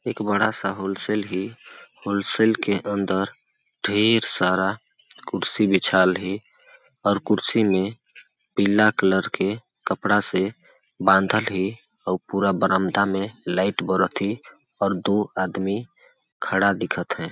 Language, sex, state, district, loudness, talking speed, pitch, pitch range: Awadhi, male, Chhattisgarh, Balrampur, -23 LUFS, 130 wpm, 100 Hz, 95-105 Hz